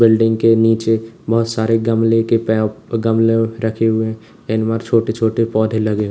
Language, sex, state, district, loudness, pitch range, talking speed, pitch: Hindi, male, Uttar Pradesh, Lalitpur, -16 LUFS, 110-115 Hz, 165 wpm, 115 Hz